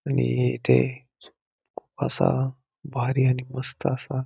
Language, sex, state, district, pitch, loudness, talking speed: Marathi, male, Maharashtra, Pune, 130 Hz, -25 LUFS, 110 wpm